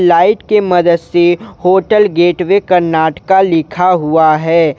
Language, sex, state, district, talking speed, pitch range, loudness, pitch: Hindi, male, Jharkhand, Garhwa, 125 wpm, 165-190 Hz, -11 LUFS, 175 Hz